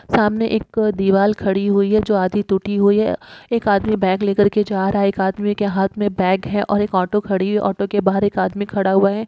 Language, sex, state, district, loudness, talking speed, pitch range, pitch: Hindi, female, Uttar Pradesh, Muzaffarnagar, -18 LUFS, 260 wpm, 195-210 Hz, 200 Hz